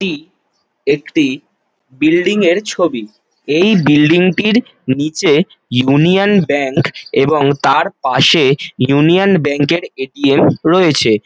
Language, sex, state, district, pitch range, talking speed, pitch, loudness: Bengali, male, West Bengal, Jalpaiguri, 140-190 Hz, 100 wpm, 160 Hz, -13 LUFS